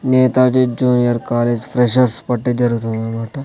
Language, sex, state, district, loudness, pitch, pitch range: Telugu, male, Andhra Pradesh, Sri Satya Sai, -16 LUFS, 125 Hz, 120-130 Hz